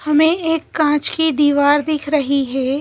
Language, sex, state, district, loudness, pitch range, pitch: Hindi, female, Madhya Pradesh, Bhopal, -16 LUFS, 285-310 Hz, 295 Hz